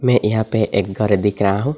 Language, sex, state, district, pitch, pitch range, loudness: Hindi, male, Assam, Hailakandi, 105 Hz, 100-110 Hz, -18 LUFS